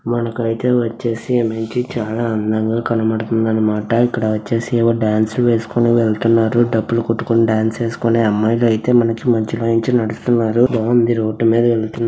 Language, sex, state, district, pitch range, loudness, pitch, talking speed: Telugu, male, Andhra Pradesh, Srikakulam, 110-120 Hz, -16 LUFS, 115 Hz, 115 wpm